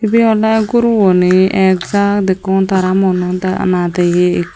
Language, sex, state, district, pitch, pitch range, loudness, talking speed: Chakma, female, Tripura, Unakoti, 190 Hz, 180-205 Hz, -12 LUFS, 145 wpm